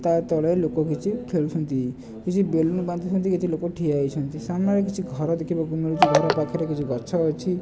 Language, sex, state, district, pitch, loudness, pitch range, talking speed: Odia, male, Odisha, Nuapada, 165 Hz, -24 LUFS, 155-180 Hz, 205 wpm